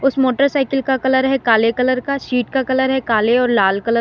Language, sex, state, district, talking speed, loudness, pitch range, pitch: Hindi, female, Uttar Pradesh, Lalitpur, 255 wpm, -16 LUFS, 235-270 Hz, 260 Hz